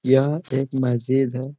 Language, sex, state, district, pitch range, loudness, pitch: Hindi, male, Bihar, Gaya, 130-135 Hz, -22 LUFS, 135 Hz